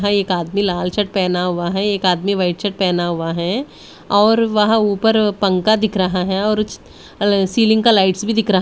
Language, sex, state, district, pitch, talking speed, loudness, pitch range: Hindi, female, Delhi, New Delhi, 200 Hz, 210 wpm, -16 LUFS, 185-215 Hz